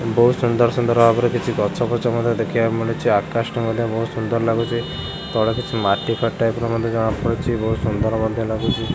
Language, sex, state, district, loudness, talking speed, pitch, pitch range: Odia, male, Odisha, Khordha, -20 LUFS, 195 wpm, 115 Hz, 110-120 Hz